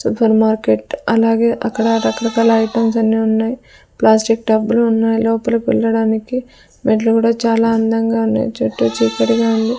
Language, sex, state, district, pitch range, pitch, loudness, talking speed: Telugu, female, Andhra Pradesh, Sri Satya Sai, 220-230 Hz, 225 Hz, -15 LUFS, 135 wpm